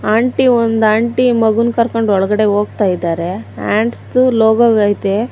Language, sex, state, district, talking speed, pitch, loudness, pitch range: Kannada, female, Karnataka, Bangalore, 135 wpm, 220 Hz, -13 LUFS, 205-235 Hz